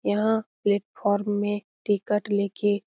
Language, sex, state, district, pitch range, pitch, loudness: Hindi, female, Bihar, Lakhisarai, 205-210 Hz, 205 Hz, -26 LUFS